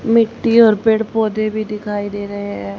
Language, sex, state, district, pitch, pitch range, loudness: Hindi, female, Haryana, Charkhi Dadri, 215 Hz, 205-225 Hz, -16 LUFS